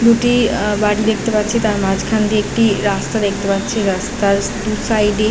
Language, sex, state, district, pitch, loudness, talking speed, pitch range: Bengali, female, West Bengal, Jhargram, 215 Hz, -16 LUFS, 205 wpm, 205-220 Hz